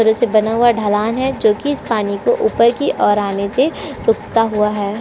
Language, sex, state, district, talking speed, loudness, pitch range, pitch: Hindi, female, Chhattisgarh, Korba, 225 wpm, -16 LUFS, 210-245 Hz, 225 Hz